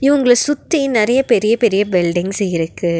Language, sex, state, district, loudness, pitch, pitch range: Tamil, female, Tamil Nadu, Nilgiris, -15 LUFS, 220 Hz, 180-265 Hz